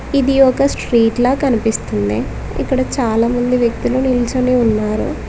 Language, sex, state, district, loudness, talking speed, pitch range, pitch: Telugu, female, Telangana, Mahabubabad, -15 LUFS, 115 wpm, 225-260 Hz, 245 Hz